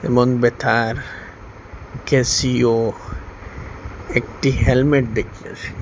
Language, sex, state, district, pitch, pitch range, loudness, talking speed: Bengali, female, Assam, Hailakandi, 115 Hz, 95-125 Hz, -18 LUFS, 50 wpm